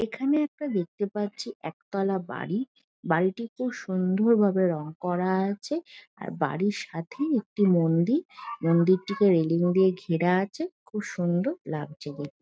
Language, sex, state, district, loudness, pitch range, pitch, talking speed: Bengali, female, West Bengal, Jhargram, -27 LUFS, 175-230 Hz, 195 Hz, 140 wpm